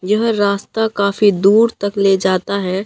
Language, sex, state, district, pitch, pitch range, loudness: Hindi, female, Bihar, Katihar, 200 Hz, 195-210 Hz, -15 LUFS